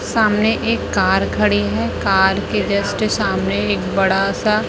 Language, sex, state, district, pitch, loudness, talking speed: Hindi, female, Chhattisgarh, Raipur, 190 Hz, -17 LUFS, 155 wpm